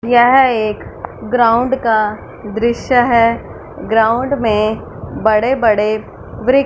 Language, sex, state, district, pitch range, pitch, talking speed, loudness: Hindi, female, Punjab, Fazilka, 220-245 Hz, 230 Hz, 100 wpm, -14 LUFS